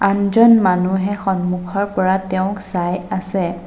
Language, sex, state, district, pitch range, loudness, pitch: Assamese, female, Assam, Sonitpur, 180-200 Hz, -17 LUFS, 190 Hz